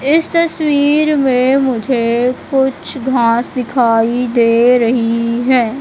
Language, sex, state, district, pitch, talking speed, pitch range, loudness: Hindi, female, Madhya Pradesh, Katni, 250 Hz, 105 wpm, 235-275 Hz, -13 LUFS